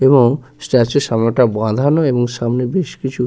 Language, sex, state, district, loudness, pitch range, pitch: Bengali, male, West Bengal, Purulia, -16 LUFS, 120-140 Hz, 125 Hz